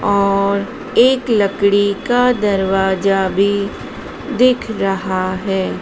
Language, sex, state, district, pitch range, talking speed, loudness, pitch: Hindi, female, Madhya Pradesh, Dhar, 195-220 Hz, 95 wpm, -16 LUFS, 200 Hz